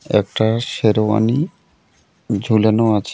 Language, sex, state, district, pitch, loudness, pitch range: Bengali, male, West Bengal, Alipurduar, 110 Hz, -17 LUFS, 105-115 Hz